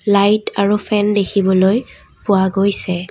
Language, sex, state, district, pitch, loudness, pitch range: Assamese, female, Assam, Kamrup Metropolitan, 200 Hz, -15 LUFS, 195-210 Hz